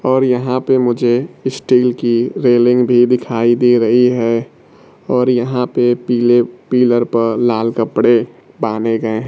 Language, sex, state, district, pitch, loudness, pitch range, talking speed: Hindi, male, Bihar, Kaimur, 120 Hz, -14 LUFS, 115-125 Hz, 150 wpm